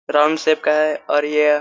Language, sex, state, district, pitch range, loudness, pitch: Hindi, male, Chhattisgarh, Korba, 150-155 Hz, -17 LUFS, 150 Hz